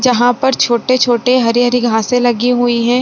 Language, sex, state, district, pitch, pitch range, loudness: Hindi, female, Bihar, Saran, 245 Hz, 240-250 Hz, -13 LUFS